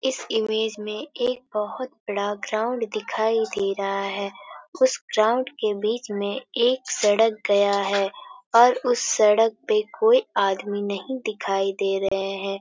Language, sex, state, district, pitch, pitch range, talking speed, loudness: Hindi, female, Jharkhand, Sahebganj, 215 Hz, 200-250 Hz, 140 wpm, -23 LUFS